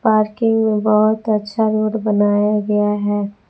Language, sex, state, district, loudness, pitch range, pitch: Hindi, female, Jharkhand, Palamu, -17 LUFS, 210-220 Hz, 215 Hz